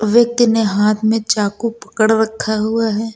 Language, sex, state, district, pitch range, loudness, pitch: Hindi, male, Uttar Pradesh, Lucknow, 215-225 Hz, -16 LUFS, 220 Hz